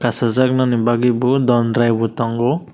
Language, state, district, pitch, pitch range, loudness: Kokborok, Tripura, West Tripura, 120 Hz, 115-130 Hz, -16 LUFS